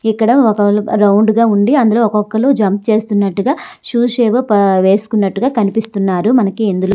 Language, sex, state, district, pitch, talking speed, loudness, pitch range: Telugu, female, Andhra Pradesh, Srikakulam, 215 Hz, 120 wpm, -13 LUFS, 205-230 Hz